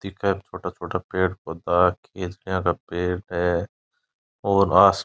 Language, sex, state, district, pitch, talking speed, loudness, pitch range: Rajasthani, male, Rajasthan, Churu, 95 Hz, 155 wpm, -24 LUFS, 90-100 Hz